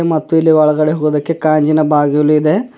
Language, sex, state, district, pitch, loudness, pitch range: Kannada, male, Karnataka, Bidar, 155 Hz, -12 LUFS, 150-160 Hz